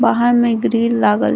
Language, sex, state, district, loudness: Maithili, female, Bihar, Saharsa, -15 LUFS